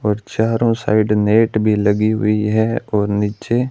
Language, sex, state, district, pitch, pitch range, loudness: Hindi, male, Rajasthan, Bikaner, 110 Hz, 105-110 Hz, -17 LUFS